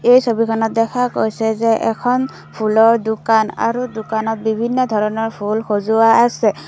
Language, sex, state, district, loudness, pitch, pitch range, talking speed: Assamese, female, Assam, Kamrup Metropolitan, -16 LUFS, 225 Hz, 220-230 Hz, 135 wpm